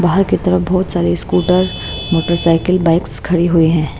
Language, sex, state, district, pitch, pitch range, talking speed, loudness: Hindi, female, Bihar, Patna, 175 Hz, 165-180 Hz, 165 wpm, -14 LUFS